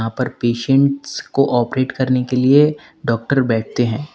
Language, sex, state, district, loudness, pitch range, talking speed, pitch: Hindi, male, Uttar Pradesh, Lalitpur, -17 LUFS, 120-140 Hz, 145 wpm, 130 Hz